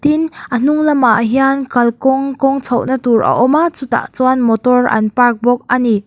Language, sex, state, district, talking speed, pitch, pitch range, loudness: Mizo, female, Mizoram, Aizawl, 195 wpm, 250 Hz, 240-275 Hz, -13 LUFS